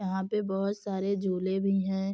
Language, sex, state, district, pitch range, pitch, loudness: Hindi, female, Uttar Pradesh, Jyotiba Phule Nagar, 190-200 Hz, 195 Hz, -30 LUFS